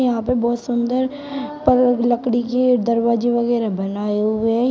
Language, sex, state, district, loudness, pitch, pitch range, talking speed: Hindi, female, Uttar Pradesh, Shamli, -19 LUFS, 240 Hz, 230-250 Hz, 140 wpm